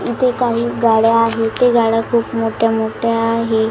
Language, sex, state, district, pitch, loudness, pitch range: Marathi, female, Maharashtra, Washim, 230 Hz, -15 LUFS, 225-235 Hz